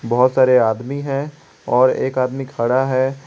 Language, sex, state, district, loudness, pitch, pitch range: Hindi, male, Jharkhand, Garhwa, -17 LUFS, 130 Hz, 125-135 Hz